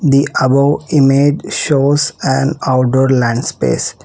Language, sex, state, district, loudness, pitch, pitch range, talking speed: English, female, Telangana, Hyderabad, -13 LUFS, 140 Hz, 130-145 Hz, 105 wpm